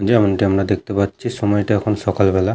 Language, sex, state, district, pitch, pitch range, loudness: Bengali, male, West Bengal, Malda, 100 Hz, 100-105 Hz, -18 LUFS